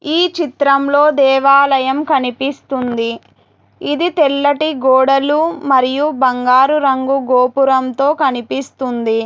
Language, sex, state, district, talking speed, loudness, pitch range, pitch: Telugu, female, Telangana, Hyderabad, 80 wpm, -14 LUFS, 260-290 Hz, 275 Hz